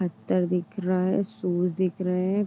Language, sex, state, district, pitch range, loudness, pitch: Hindi, female, Uttar Pradesh, Deoria, 180-190 Hz, -26 LUFS, 185 Hz